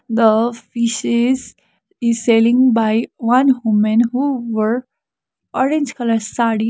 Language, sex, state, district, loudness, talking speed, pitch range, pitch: English, female, Sikkim, Gangtok, -16 LUFS, 105 wpm, 225-255 Hz, 235 Hz